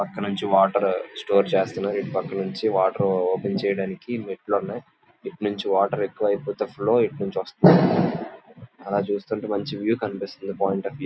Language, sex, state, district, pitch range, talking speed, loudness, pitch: Telugu, male, Andhra Pradesh, Visakhapatnam, 95-105 Hz, 145 wpm, -23 LUFS, 100 Hz